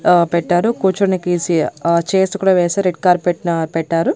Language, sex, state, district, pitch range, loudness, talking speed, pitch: Telugu, female, Andhra Pradesh, Annamaya, 170-190 Hz, -16 LUFS, 145 wpm, 175 Hz